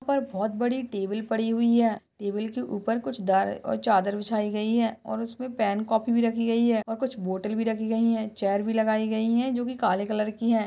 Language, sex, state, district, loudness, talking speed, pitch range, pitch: Hindi, female, Maharashtra, Solapur, -26 LUFS, 245 wpm, 210-235 Hz, 225 Hz